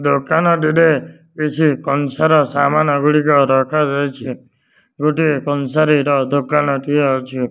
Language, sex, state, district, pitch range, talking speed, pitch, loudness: Odia, male, Odisha, Nuapada, 140-155 Hz, 80 wpm, 145 Hz, -15 LUFS